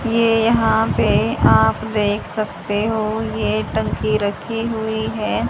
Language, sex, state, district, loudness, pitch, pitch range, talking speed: Hindi, female, Haryana, Rohtak, -19 LUFS, 220 Hz, 205-225 Hz, 130 wpm